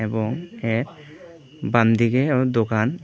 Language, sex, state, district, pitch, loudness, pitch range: Bengali, male, Tripura, West Tripura, 125 Hz, -21 LUFS, 115-150 Hz